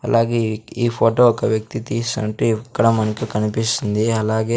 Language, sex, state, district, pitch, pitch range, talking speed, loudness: Telugu, male, Andhra Pradesh, Sri Satya Sai, 115 Hz, 110-115 Hz, 130 wpm, -19 LUFS